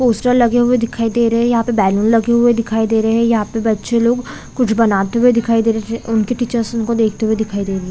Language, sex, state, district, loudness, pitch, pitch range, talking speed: Hindi, female, Chhattisgarh, Bilaspur, -15 LUFS, 230 Hz, 220-235 Hz, 275 wpm